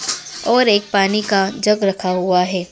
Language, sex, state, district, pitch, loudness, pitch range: Hindi, female, Madhya Pradesh, Dhar, 195 Hz, -17 LUFS, 185-210 Hz